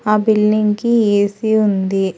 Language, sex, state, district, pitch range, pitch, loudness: Telugu, female, Telangana, Hyderabad, 205-220 Hz, 210 Hz, -15 LUFS